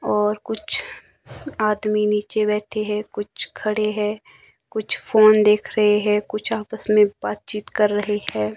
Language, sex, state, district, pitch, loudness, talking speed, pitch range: Hindi, male, Himachal Pradesh, Shimla, 210 Hz, -21 LUFS, 145 wpm, 210-215 Hz